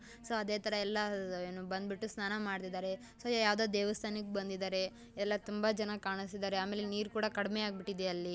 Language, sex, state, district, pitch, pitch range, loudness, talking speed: Kannada, female, Karnataka, Dakshina Kannada, 205 Hz, 195-215 Hz, -37 LUFS, 165 wpm